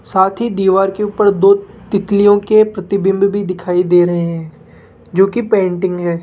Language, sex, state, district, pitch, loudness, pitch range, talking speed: Hindi, female, Rajasthan, Jaipur, 195 Hz, -14 LUFS, 180-205 Hz, 175 wpm